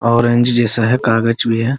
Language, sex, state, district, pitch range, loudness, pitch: Hindi, male, Bihar, Muzaffarpur, 115-120 Hz, -14 LUFS, 115 Hz